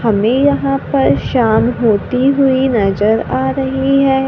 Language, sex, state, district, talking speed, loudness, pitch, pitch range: Hindi, female, Maharashtra, Gondia, 140 wpm, -13 LUFS, 235 Hz, 205-265 Hz